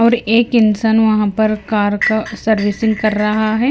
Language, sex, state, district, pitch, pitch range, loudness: Hindi, female, Himachal Pradesh, Shimla, 220 Hz, 215-225 Hz, -15 LUFS